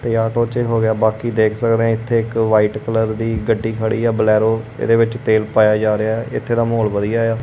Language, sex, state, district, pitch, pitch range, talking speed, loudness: Punjabi, male, Punjab, Kapurthala, 110 Hz, 110-115 Hz, 250 wpm, -17 LUFS